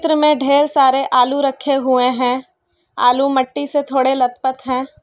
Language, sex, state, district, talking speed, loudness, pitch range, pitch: Hindi, female, Bihar, Kishanganj, 155 wpm, -16 LUFS, 255-285 Hz, 265 Hz